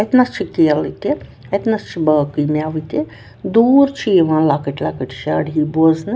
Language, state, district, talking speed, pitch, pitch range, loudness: Kashmiri, Punjab, Kapurthala, 175 wpm, 155 Hz, 150-200 Hz, -16 LUFS